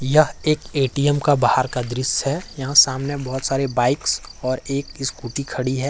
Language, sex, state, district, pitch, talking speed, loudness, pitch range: Hindi, male, Jharkhand, Ranchi, 135 Hz, 185 wpm, -20 LUFS, 130-145 Hz